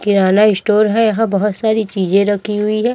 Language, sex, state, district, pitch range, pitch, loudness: Hindi, female, Chhattisgarh, Raipur, 200-220 Hz, 210 Hz, -14 LUFS